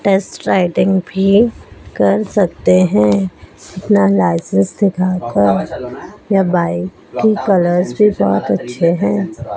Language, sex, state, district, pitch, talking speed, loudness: Hindi, male, Madhya Pradesh, Dhar, 180 Hz, 105 wpm, -14 LUFS